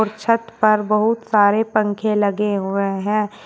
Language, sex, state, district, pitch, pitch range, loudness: Hindi, male, Uttar Pradesh, Shamli, 210 Hz, 205-220 Hz, -18 LUFS